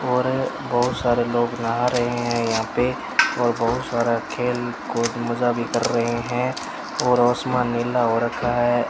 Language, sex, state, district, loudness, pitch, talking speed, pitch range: Hindi, male, Rajasthan, Bikaner, -22 LUFS, 120 Hz, 175 wpm, 120-125 Hz